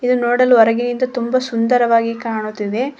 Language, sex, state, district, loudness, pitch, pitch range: Kannada, female, Karnataka, Koppal, -16 LUFS, 240 Hz, 230-250 Hz